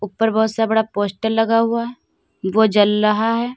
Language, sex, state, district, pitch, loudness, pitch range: Hindi, female, Uttar Pradesh, Lalitpur, 220 Hz, -18 LUFS, 210-225 Hz